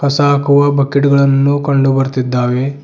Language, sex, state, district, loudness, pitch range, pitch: Kannada, male, Karnataka, Bidar, -12 LUFS, 135-140 Hz, 140 Hz